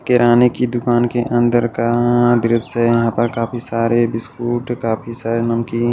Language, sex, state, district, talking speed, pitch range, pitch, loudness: Hindi, male, Odisha, Malkangiri, 150 wpm, 115-120 Hz, 120 Hz, -17 LUFS